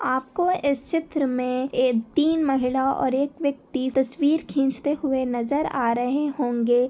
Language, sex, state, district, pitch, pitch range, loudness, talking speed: Hindi, female, Maharashtra, Nagpur, 270 Hz, 255-290 Hz, -23 LUFS, 150 wpm